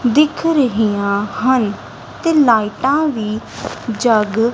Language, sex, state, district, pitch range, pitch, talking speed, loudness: Punjabi, female, Punjab, Kapurthala, 215-275 Hz, 230 Hz, 90 wpm, -16 LUFS